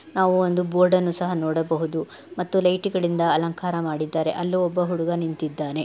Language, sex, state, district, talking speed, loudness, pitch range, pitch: Kannada, female, Karnataka, Dakshina Kannada, 145 wpm, -23 LUFS, 160-180 Hz, 175 Hz